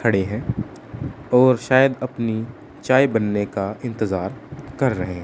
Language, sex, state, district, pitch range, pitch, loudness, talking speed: Hindi, male, Chandigarh, Chandigarh, 105-130 Hz, 115 Hz, -20 LUFS, 135 wpm